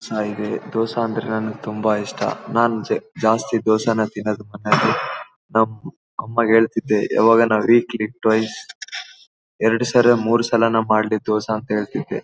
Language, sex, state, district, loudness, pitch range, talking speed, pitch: Kannada, male, Karnataka, Bellary, -19 LUFS, 110-115 Hz, 130 wpm, 110 Hz